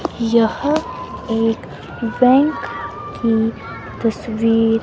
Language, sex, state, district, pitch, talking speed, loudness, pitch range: Hindi, female, Himachal Pradesh, Shimla, 230 Hz, 60 wpm, -18 LUFS, 225-250 Hz